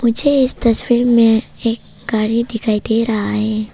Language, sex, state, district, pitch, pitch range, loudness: Hindi, female, Arunachal Pradesh, Papum Pare, 230 Hz, 220-235 Hz, -15 LUFS